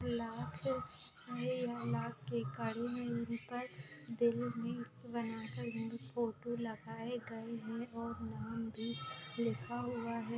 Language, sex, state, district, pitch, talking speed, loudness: Hindi, female, Bihar, Bhagalpur, 230 Hz, 115 wpm, -41 LUFS